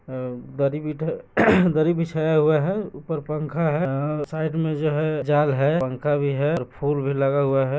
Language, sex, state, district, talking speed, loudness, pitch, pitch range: Bhojpuri, male, Bihar, East Champaran, 190 wpm, -22 LUFS, 150 Hz, 140-155 Hz